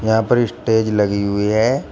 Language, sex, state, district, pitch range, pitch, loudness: Hindi, male, Uttar Pradesh, Shamli, 105-110 Hz, 110 Hz, -17 LUFS